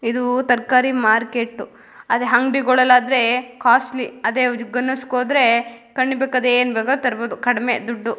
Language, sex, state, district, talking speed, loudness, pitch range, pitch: Kannada, female, Karnataka, Mysore, 90 wpm, -18 LUFS, 235-255 Hz, 250 Hz